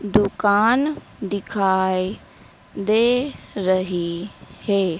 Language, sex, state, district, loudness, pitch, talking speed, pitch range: Hindi, female, Madhya Pradesh, Dhar, -21 LUFS, 200 Hz, 60 wpm, 185-215 Hz